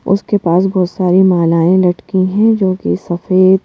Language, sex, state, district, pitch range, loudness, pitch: Hindi, female, Madhya Pradesh, Bhopal, 180-190 Hz, -13 LUFS, 185 Hz